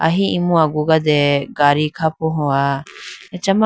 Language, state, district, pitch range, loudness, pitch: Idu Mishmi, Arunachal Pradesh, Lower Dibang Valley, 145-170 Hz, -17 LUFS, 160 Hz